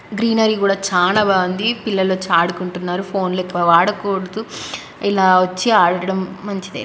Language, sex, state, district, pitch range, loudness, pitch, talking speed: Telugu, female, Andhra Pradesh, Krishna, 180-205 Hz, -17 LUFS, 190 Hz, 125 wpm